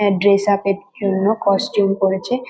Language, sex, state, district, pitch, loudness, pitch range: Bengali, female, West Bengal, North 24 Parganas, 200 Hz, -17 LUFS, 195-205 Hz